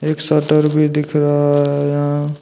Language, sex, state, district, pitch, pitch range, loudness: Hindi, male, Jharkhand, Deoghar, 150 Hz, 145-150 Hz, -16 LUFS